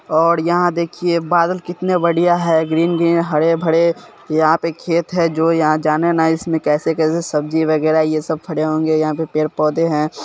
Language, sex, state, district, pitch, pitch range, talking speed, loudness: Hindi, male, Bihar, Sitamarhi, 160 Hz, 155-170 Hz, 175 wpm, -16 LUFS